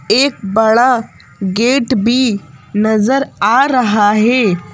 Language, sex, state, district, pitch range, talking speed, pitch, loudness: Hindi, female, Madhya Pradesh, Bhopal, 205-250 Hz, 100 wpm, 220 Hz, -13 LUFS